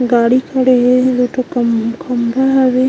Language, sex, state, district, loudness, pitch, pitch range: Chhattisgarhi, female, Chhattisgarh, Korba, -13 LUFS, 250 Hz, 240-260 Hz